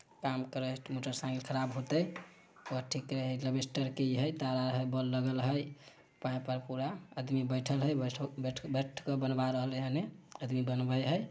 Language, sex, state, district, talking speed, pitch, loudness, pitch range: Maithili, male, Bihar, Samastipur, 95 wpm, 130 Hz, -36 LUFS, 130-140 Hz